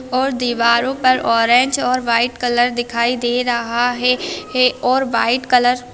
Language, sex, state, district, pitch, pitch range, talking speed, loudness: Hindi, female, Bihar, Gopalganj, 245 Hz, 240-255 Hz, 140 wpm, -16 LUFS